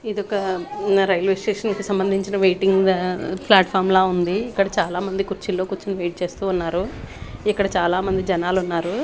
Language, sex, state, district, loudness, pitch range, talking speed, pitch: Telugu, female, Andhra Pradesh, Manyam, -21 LUFS, 180-200 Hz, 160 wpm, 190 Hz